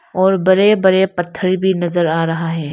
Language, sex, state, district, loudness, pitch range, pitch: Hindi, female, Arunachal Pradesh, Lower Dibang Valley, -15 LUFS, 165-190 Hz, 185 Hz